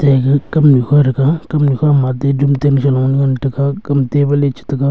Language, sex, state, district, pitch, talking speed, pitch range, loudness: Wancho, male, Arunachal Pradesh, Longding, 140 Hz, 205 wpm, 135-145 Hz, -13 LUFS